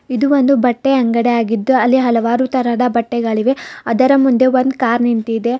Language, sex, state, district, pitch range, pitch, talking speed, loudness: Kannada, female, Karnataka, Bidar, 235-260 Hz, 245 Hz, 150 wpm, -14 LUFS